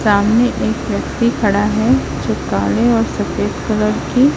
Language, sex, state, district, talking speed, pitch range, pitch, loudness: Hindi, female, Chhattisgarh, Raipur, 150 wpm, 210-240 Hz, 225 Hz, -16 LUFS